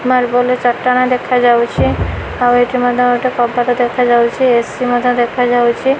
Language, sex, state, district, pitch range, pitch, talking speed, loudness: Odia, female, Odisha, Malkangiri, 245-250 Hz, 245 Hz, 160 wpm, -13 LUFS